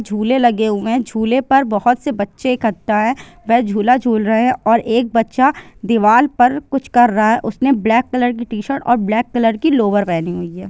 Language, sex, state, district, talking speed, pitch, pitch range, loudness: Hindi, female, Bihar, Sitamarhi, 220 wpm, 230 Hz, 215-250 Hz, -15 LUFS